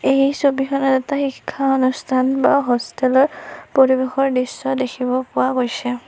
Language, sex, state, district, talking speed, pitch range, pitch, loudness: Assamese, female, Assam, Kamrup Metropolitan, 130 wpm, 255-270 Hz, 265 Hz, -18 LUFS